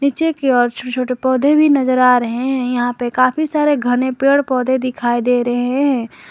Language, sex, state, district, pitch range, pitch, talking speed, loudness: Hindi, female, Jharkhand, Garhwa, 245-275 Hz, 255 Hz, 210 wpm, -16 LUFS